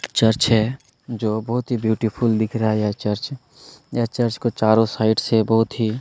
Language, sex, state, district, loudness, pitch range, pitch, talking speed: Hindi, male, Chhattisgarh, Kabirdham, -20 LUFS, 110-120 Hz, 115 Hz, 200 wpm